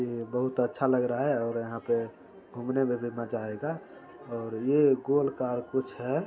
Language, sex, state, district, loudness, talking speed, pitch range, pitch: Hindi, male, Bihar, Saran, -29 LUFS, 190 wpm, 115-135 Hz, 125 Hz